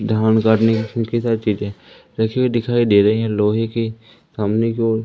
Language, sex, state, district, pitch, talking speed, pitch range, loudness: Hindi, male, Madhya Pradesh, Umaria, 110 Hz, 190 wpm, 110-115 Hz, -18 LUFS